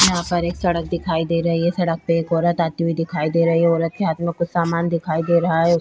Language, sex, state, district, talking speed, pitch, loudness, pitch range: Hindi, female, Bihar, Vaishali, 320 wpm, 170 Hz, -20 LUFS, 165-170 Hz